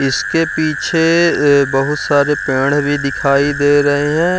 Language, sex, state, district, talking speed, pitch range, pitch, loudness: Hindi, male, Bihar, Jamui, 135 wpm, 140-155 Hz, 145 Hz, -14 LUFS